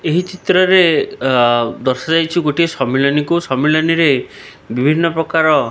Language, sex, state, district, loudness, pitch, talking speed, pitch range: Odia, male, Odisha, Khordha, -14 LUFS, 155 Hz, 115 wpm, 135-170 Hz